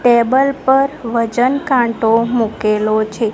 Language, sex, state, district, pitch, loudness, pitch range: Gujarati, female, Gujarat, Gandhinagar, 235 Hz, -15 LUFS, 225-260 Hz